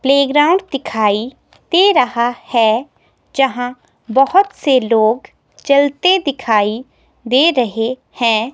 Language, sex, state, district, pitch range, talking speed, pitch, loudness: Hindi, female, Himachal Pradesh, Shimla, 230-280 Hz, 100 wpm, 255 Hz, -15 LUFS